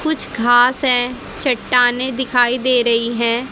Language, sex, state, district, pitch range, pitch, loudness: Hindi, female, Haryana, Jhajjar, 240-260 Hz, 245 Hz, -15 LUFS